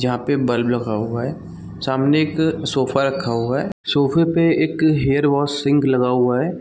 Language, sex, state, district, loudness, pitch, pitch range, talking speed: Hindi, male, Chhattisgarh, Bilaspur, -19 LUFS, 140 Hz, 125-155 Hz, 190 wpm